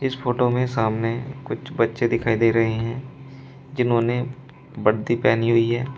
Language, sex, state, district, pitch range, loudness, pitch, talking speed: Hindi, male, Uttar Pradesh, Shamli, 115-130 Hz, -22 LUFS, 120 Hz, 150 wpm